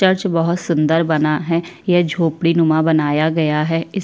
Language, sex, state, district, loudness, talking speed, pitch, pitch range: Hindi, female, Chhattisgarh, Kabirdham, -17 LUFS, 180 wpm, 165 Hz, 155-170 Hz